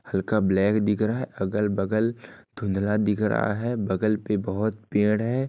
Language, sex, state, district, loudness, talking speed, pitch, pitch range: Hindi, male, Uttarakhand, Uttarkashi, -25 LUFS, 175 wpm, 105 Hz, 100-110 Hz